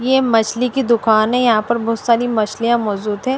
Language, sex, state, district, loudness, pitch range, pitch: Hindi, female, Punjab, Fazilka, -16 LUFS, 220-245 Hz, 230 Hz